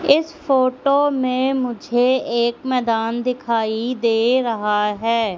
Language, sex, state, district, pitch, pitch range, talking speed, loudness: Hindi, female, Madhya Pradesh, Katni, 245 Hz, 230-260 Hz, 110 wpm, -19 LUFS